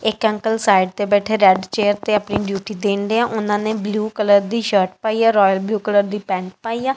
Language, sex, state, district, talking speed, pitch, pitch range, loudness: Punjabi, female, Punjab, Kapurthala, 240 wpm, 210 Hz, 200-220 Hz, -18 LUFS